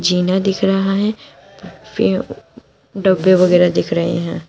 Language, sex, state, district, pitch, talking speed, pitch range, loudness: Hindi, female, Uttar Pradesh, Shamli, 185 Hz, 135 wpm, 180-195 Hz, -15 LUFS